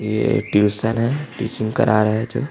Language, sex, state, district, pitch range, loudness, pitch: Hindi, male, Chhattisgarh, Jashpur, 110-120 Hz, -19 LUFS, 110 Hz